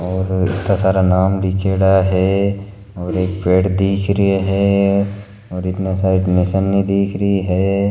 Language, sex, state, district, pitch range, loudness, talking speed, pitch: Marwari, male, Rajasthan, Nagaur, 95-100 Hz, -16 LUFS, 135 wpm, 95 Hz